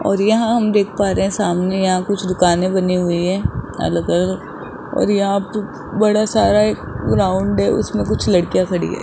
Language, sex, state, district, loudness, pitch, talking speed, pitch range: Hindi, male, Rajasthan, Jaipur, -17 LUFS, 195 Hz, 185 wpm, 180-210 Hz